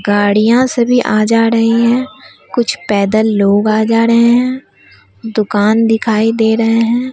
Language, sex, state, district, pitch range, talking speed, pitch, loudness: Hindi, female, Bihar, Katihar, 215-235 Hz, 150 wpm, 225 Hz, -12 LUFS